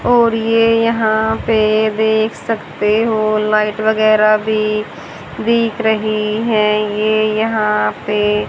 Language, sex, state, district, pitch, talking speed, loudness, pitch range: Hindi, male, Haryana, Jhajjar, 215 Hz, 115 wpm, -15 LUFS, 215-220 Hz